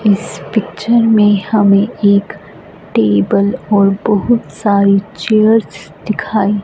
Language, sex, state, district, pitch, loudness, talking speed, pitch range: Hindi, female, Punjab, Fazilka, 205 Hz, -13 LUFS, 100 wpm, 195-215 Hz